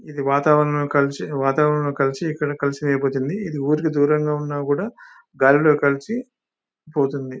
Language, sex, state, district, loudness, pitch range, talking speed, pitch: Telugu, male, Telangana, Nalgonda, -20 LUFS, 140-150 Hz, 130 wpm, 145 Hz